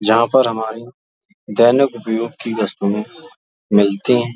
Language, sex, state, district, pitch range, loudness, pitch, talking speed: Hindi, male, Uttar Pradesh, Jalaun, 110-125 Hz, -17 LUFS, 115 Hz, 125 wpm